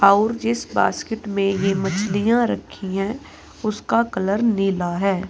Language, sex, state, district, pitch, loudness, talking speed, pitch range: Hindi, female, Uttar Pradesh, Saharanpur, 200 Hz, -21 LUFS, 135 wpm, 195-230 Hz